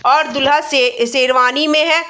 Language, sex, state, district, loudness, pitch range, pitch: Hindi, female, Bihar, Darbhanga, -13 LUFS, 255-310 Hz, 290 Hz